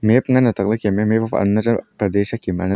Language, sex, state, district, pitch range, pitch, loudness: Wancho, male, Arunachal Pradesh, Longding, 100-115 Hz, 110 Hz, -18 LUFS